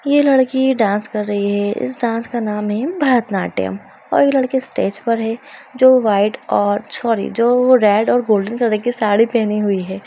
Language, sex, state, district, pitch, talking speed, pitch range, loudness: Hindi, female, Bihar, Lakhisarai, 230 Hz, 190 wpm, 210-255 Hz, -16 LUFS